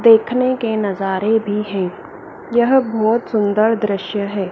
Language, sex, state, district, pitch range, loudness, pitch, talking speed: Hindi, female, Madhya Pradesh, Dhar, 200-230 Hz, -17 LUFS, 215 Hz, 135 wpm